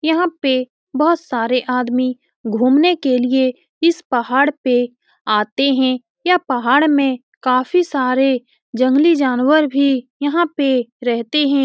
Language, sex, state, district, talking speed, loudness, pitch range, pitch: Hindi, female, Bihar, Saran, 130 wpm, -16 LUFS, 250-295 Hz, 260 Hz